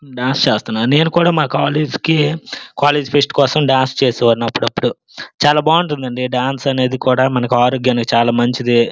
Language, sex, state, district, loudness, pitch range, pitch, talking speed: Telugu, male, Andhra Pradesh, Srikakulam, -15 LUFS, 125-145 Hz, 130 Hz, 155 wpm